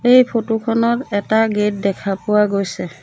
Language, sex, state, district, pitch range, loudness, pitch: Assamese, female, Assam, Sonitpur, 200-230 Hz, -17 LUFS, 210 Hz